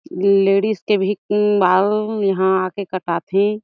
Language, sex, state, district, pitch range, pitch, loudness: Chhattisgarhi, female, Chhattisgarh, Jashpur, 190-210 Hz, 200 Hz, -18 LUFS